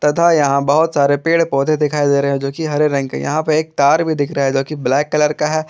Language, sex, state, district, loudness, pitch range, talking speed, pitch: Hindi, male, Jharkhand, Garhwa, -16 LUFS, 140-155 Hz, 315 wpm, 150 Hz